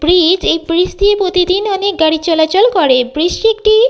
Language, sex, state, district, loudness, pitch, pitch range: Bengali, female, West Bengal, Jhargram, -12 LUFS, 360 Hz, 330-405 Hz